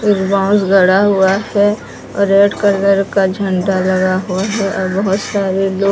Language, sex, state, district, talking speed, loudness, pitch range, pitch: Hindi, female, Odisha, Sambalpur, 170 wpm, -14 LUFS, 190-200 Hz, 195 Hz